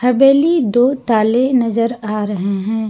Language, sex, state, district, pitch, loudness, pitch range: Hindi, female, Jharkhand, Garhwa, 230 Hz, -15 LUFS, 215-255 Hz